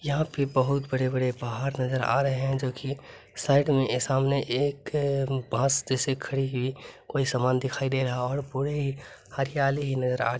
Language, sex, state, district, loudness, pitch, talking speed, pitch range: Maithili, male, Bihar, Begusarai, -27 LUFS, 135 Hz, 190 wpm, 130-140 Hz